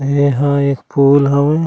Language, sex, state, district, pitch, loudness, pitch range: Chhattisgarhi, male, Chhattisgarh, Raigarh, 140 Hz, -13 LUFS, 140-145 Hz